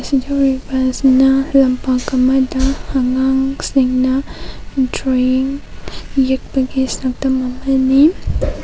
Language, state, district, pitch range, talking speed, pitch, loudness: Manipuri, Manipur, Imphal West, 255-270 Hz, 70 wpm, 265 Hz, -15 LUFS